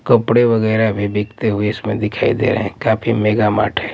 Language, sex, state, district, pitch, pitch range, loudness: Hindi, male, Punjab, Pathankot, 110 Hz, 105-115 Hz, -16 LUFS